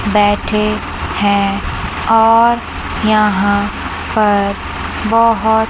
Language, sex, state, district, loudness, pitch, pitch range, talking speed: Hindi, female, Chandigarh, Chandigarh, -14 LUFS, 215 Hz, 205-225 Hz, 65 wpm